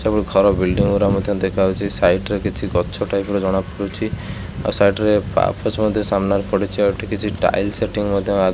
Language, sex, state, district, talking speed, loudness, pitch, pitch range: Odia, male, Odisha, Khordha, 195 wpm, -19 LUFS, 100 Hz, 95-105 Hz